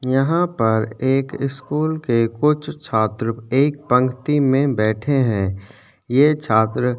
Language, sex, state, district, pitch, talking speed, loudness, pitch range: Hindi, male, Chhattisgarh, Sukma, 130 Hz, 120 wpm, -19 LUFS, 110-140 Hz